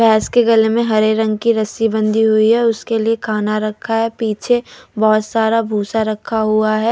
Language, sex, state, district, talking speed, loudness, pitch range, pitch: Hindi, female, Delhi, New Delhi, 200 wpm, -16 LUFS, 215-225 Hz, 220 Hz